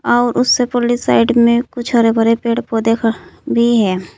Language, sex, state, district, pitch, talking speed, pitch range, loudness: Hindi, female, Uttar Pradesh, Saharanpur, 235 Hz, 185 wpm, 225-240 Hz, -14 LUFS